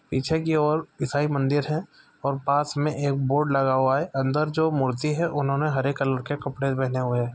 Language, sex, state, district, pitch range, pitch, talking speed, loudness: Maithili, male, Bihar, Supaul, 135-150 Hz, 140 Hz, 210 wpm, -24 LUFS